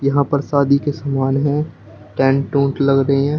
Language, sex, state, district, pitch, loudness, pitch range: Hindi, male, Uttar Pradesh, Shamli, 140 Hz, -17 LUFS, 135-145 Hz